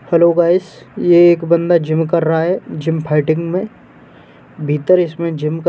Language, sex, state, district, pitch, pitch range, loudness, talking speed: Hindi, male, Uttar Pradesh, Etah, 170 Hz, 155-175 Hz, -14 LUFS, 180 wpm